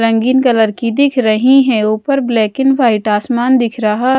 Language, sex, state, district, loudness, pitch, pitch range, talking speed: Hindi, female, Odisha, Malkangiri, -12 LUFS, 240 Hz, 220-260 Hz, 185 wpm